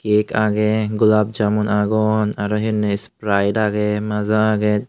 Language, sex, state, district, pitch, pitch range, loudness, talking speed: Chakma, male, Tripura, Unakoti, 105 Hz, 105-110 Hz, -18 LUFS, 145 wpm